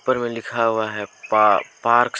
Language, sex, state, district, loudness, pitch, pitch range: Hindi, male, Jharkhand, Deoghar, -20 LUFS, 115 Hz, 105-120 Hz